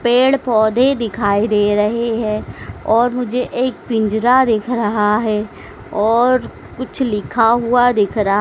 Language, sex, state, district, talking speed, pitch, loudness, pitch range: Hindi, female, Madhya Pradesh, Dhar, 135 wpm, 230 Hz, -16 LUFS, 210-245 Hz